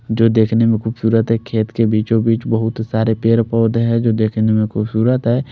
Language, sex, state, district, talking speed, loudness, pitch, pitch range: Hindi, male, Odisha, Khordha, 205 wpm, -16 LUFS, 115 Hz, 110-115 Hz